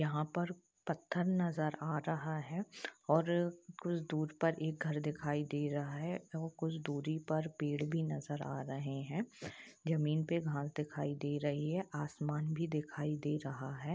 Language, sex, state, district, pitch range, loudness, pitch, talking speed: Hindi, female, Jharkhand, Jamtara, 150-165 Hz, -39 LUFS, 155 Hz, 170 wpm